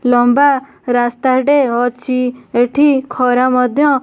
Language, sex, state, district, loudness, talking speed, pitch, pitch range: Odia, female, Odisha, Nuapada, -14 LUFS, 105 wpm, 255 Hz, 245-275 Hz